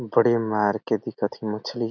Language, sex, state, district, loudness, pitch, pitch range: Awadhi, male, Chhattisgarh, Balrampur, -24 LUFS, 110 Hz, 105-115 Hz